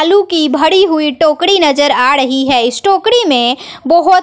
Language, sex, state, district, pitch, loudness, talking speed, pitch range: Hindi, female, Bihar, West Champaran, 310 Hz, -10 LUFS, 185 wpm, 275-370 Hz